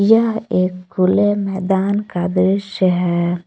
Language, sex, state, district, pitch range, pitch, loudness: Hindi, female, Jharkhand, Palamu, 180-200 Hz, 190 Hz, -17 LUFS